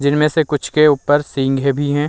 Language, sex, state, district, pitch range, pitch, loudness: Hindi, male, Bihar, Vaishali, 140-150 Hz, 145 Hz, -16 LUFS